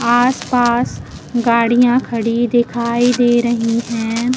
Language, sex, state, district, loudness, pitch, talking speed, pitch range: Hindi, female, Uttar Pradesh, Lucknow, -15 LUFS, 240 Hz, 110 wpm, 235-245 Hz